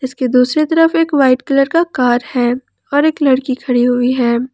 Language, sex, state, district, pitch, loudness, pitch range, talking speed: Hindi, female, Jharkhand, Ranchi, 260 Hz, -14 LUFS, 250-295 Hz, 195 wpm